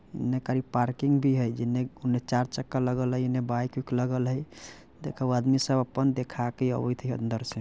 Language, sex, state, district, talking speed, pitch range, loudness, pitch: Bajjika, male, Bihar, Vaishali, 205 wpm, 125-130 Hz, -28 LUFS, 125 Hz